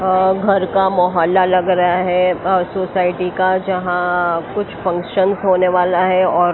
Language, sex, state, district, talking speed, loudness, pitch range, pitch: Hindi, female, Maharashtra, Mumbai Suburban, 145 wpm, -16 LUFS, 180-190 Hz, 185 Hz